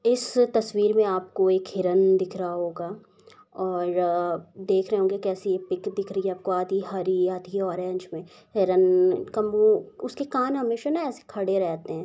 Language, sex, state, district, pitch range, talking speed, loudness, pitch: Hindi, female, Bihar, Saharsa, 185-230 Hz, 175 wpm, -25 LUFS, 190 Hz